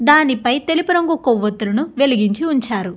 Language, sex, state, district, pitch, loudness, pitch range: Telugu, female, Andhra Pradesh, Guntur, 260 Hz, -17 LUFS, 215-310 Hz